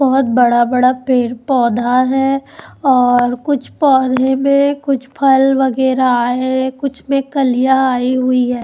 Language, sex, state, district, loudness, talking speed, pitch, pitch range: Hindi, female, Chandigarh, Chandigarh, -14 LUFS, 145 wpm, 260 Hz, 250-270 Hz